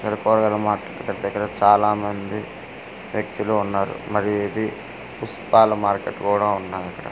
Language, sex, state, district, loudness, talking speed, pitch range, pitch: Telugu, male, Andhra Pradesh, Manyam, -21 LUFS, 120 wpm, 100-105 Hz, 105 Hz